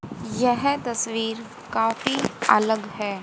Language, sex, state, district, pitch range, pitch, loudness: Hindi, female, Haryana, Jhajjar, 220-245 Hz, 225 Hz, -23 LUFS